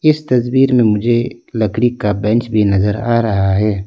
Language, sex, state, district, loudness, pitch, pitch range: Hindi, male, Arunachal Pradesh, Lower Dibang Valley, -15 LUFS, 115 Hz, 105-120 Hz